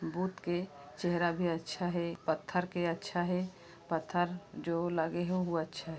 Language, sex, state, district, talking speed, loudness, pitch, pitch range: Chhattisgarhi, female, Chhattisgarh, Kabirdham, 170 wpm, -35 LUFS, 175 Hz, 165-180 Hz